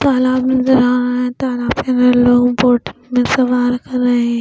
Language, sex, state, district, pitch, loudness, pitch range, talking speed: Hindi, female, Punjab, Pathankot, 250 Hz, -14 LUFS, 245-255 Hz, 190 wpm